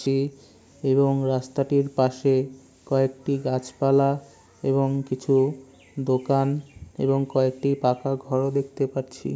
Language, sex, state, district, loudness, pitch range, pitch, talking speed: Bengali, male, West Bengal, Kolkata, -24 LUFS, 130-140 Hz, 135 Hz, 95 wpm